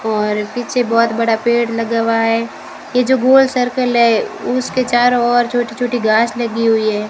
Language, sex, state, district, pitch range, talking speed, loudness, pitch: Hindi, female, Rajasthan, Bikaner, 225-245 Hz, 185 wpm, -15 LUFS, 235 Hz